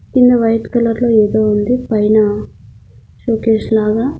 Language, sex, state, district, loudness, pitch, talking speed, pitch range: Telugu, female, Andhra Pradesh, Annamaya, -13 LUFS, 220 Hz, 130 wpm, 210-235 Hz